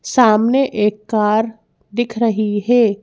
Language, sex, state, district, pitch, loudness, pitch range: Hindi, female, Madhya Pradesh, Bhopal, 220 Hz, -16 LUFS, 210-240 Hz